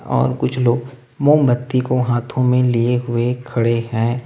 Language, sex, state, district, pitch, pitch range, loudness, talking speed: Hindi, male, Uttar Pradesh, Lalitpur, 120 Hz, 120-125 Hz, -18 LUFS, 155 wpm